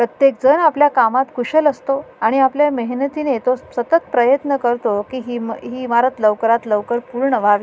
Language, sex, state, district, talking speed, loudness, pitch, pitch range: Marathi, female, Maharashtra, Sindhudurg, 175 wpm, -17 LUFS, 255 Hz, 235-275 Hz